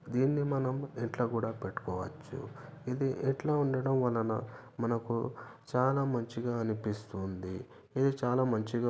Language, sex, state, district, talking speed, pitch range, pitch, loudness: Telugu, male, Telangana, Karimnagar, 115 wpm, 115-135 Hz, 125 Hz, -33 LUFS